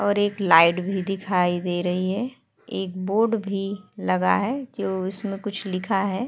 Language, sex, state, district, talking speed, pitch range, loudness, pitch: Hindi, female, Uttar Pradesh, Etah, 170 wpm, 185-205 Hz, -24 LUFS, 195 Hz